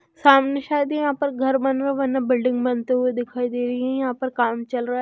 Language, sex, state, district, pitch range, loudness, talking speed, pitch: Hindi, female, Chhattisgarh, Raipur, 245-275 Hz, -21 LUFS, 240 wpm, 255 Hz